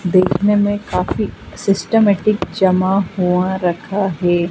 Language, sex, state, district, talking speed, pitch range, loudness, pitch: Hindi, female, Madhya Pradesh, Dhar, 105 wpm, 180-205 Hz, -17 LUFS, 190 Hz